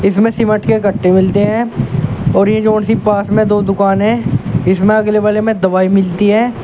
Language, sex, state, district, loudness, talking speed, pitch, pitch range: Hindi, male, Uttar Pradesh, Shamli, -12 LUFS, 200 wpm, 210 Hz, 195-215 Hz